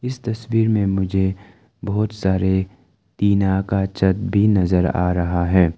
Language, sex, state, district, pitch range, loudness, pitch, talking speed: Hindi, male, Arunachal Pradesh, Lower Dibang Valley, 95-105 Hz, -19 LUFS, 95 Hz, 145 wpm